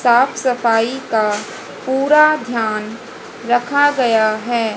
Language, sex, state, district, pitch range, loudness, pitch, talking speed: Hindi, female, Haryana, Jhajjar, 220-260 Hz, -16 LUFS, 240 Hz, 100 wpm